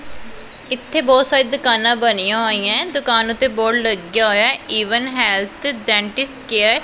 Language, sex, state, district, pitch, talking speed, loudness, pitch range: Punjabi, female, Punjab, Pathankot, 230 Hz, 140 wpm, -15 LUFS, 220-260 Hz